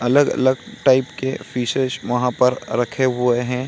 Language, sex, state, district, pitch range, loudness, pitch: Hindi, male, Bihar, Samastipur, 125-130 Hz, -19 LUFS, 125 Hz